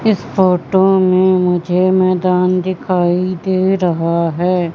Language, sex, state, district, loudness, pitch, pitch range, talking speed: Hindi, female, Madhya Pradesh, Katni, -14 LUFS, 185 Hz, 180-185 Hz, 115 wpm